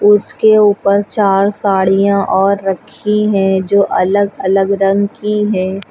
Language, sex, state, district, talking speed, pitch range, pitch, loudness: Hindi, female, Uttar Pradesh, Lucknow, 130 wpm, 195-205 Hz, 200 Hz, -13 LUFS